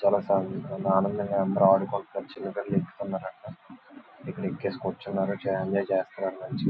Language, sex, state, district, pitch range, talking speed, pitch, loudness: Telugu, male, Andhra Pradesh, Visakhapatnam, 95-100 Hz, 160 wpm, 95 Hz, -28 LUFS